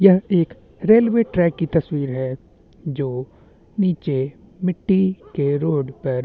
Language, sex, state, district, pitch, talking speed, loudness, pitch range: Hindi, male, Chhattisgarh, Bastar, 160 Hz, 135 wpm, -20 LUFS, 135-185 Hz